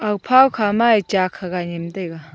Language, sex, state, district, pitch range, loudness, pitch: Wancho, female, Arunachal Pradesh, Longding, 175-215 Hz, -18 LUFS, 195 Hz